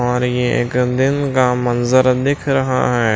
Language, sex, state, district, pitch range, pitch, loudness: Hindi, male, Maharashtra, Washim, 125-130 Hz, 125 Hz, -16 LUFS